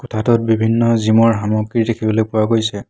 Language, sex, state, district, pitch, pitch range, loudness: Assamese, male, Assam, Hailakandi, 110 Hz, 110-115 Hz, -15 LUFS